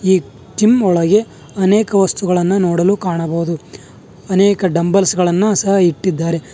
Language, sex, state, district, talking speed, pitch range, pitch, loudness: Kannada, male, Karnataka, Bangalore, 110 wpm, 170-195 Hz, 185 Hz, -14 LUFS